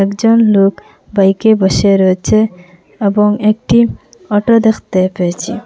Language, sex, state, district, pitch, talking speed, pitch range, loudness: Bengali, female, Assam, Hailakandi, 205 Hz, 105 wpm, 190-220 Hz, -12 LUFS